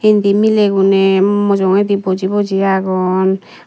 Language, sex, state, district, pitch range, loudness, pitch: Chakma, female, Tripura, Dhalai, 190-205 Hz, -13 LUFS, 195 Hz